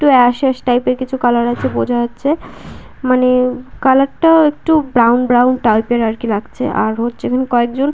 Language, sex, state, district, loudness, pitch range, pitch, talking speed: Bengali, female, West Bengal, Paschim Medinipur, -14 LUFS, 240-265 Hz, 250 Hz, 180 wpm